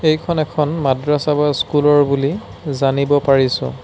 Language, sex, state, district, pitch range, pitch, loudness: Assamese, male, Assam, Sonitpur, 140-150 Hz, 145 Hz, -16 LUFS